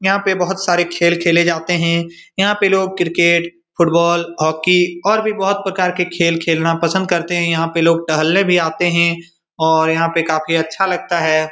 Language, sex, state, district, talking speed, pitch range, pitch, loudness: Hindi, male, Bihar, Supaul, 200 wpm, 165-180 Hz, 170 Hz, -15 LUFS